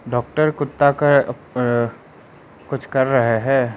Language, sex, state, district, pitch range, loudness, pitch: Hindi, male, Arunachal Pradesh, Lower Dibang Valley, 120-145 Hz, -19 LUFS, 135 Hz